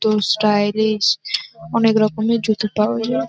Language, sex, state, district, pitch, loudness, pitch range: Bengali, female, West Bengal, North 24 Parganas, 215 Hz, -18 LUFS, 210-225 Hz